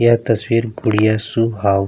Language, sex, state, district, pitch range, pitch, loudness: Hindi, male, Bihar, Vaishali, 110-115 Hz, 115 Hz, -17 LUFS